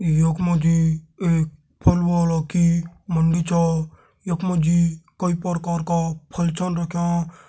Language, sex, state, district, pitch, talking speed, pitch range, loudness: Garhwali, male, Uttarakhand, Tehri Garhwal, 170 Hz, 130 wpm, 165-175 Hz, -21 LUFS